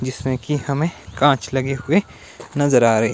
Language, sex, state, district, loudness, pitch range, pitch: Hindi, male, Himachal Pradesh, Shimla, -19 LUFS, 125-145 Hz, 135 Hz